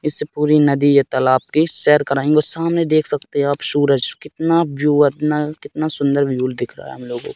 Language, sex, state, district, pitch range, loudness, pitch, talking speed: Hindi, male, Madhya Pradesh, Katni, 140-150 Hz, -16 LUFS, 145 Hz, 230 wpm